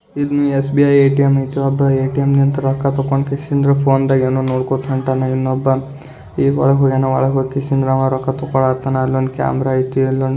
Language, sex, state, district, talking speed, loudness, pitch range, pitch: Kannada, male, Karnataka, Bijapur, 160 wpm, -16 LUFS, 130-140 Hz, 135 Hz